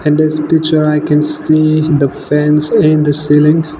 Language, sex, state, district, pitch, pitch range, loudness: English, male, Nagaland, Dimapur, 150 Hz, 150-155 Hz, -11 LUFS